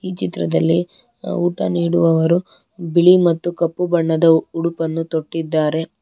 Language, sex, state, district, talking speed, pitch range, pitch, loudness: Kannada, female, Karnataka, Bangalore, 100 wpm, 165-175 Hz, 170 Hz, -17 LUFS